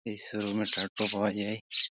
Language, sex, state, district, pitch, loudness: Bengali, male, West Bengal, Purulia, 105 Hz, -28 LUFS